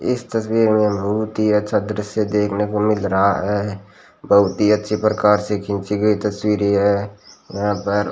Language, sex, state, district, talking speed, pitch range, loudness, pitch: Hindi, male, Rajasthan, Bikaner, 185 wpm, 100-105 Hz, -18 LUFS, 105 Hz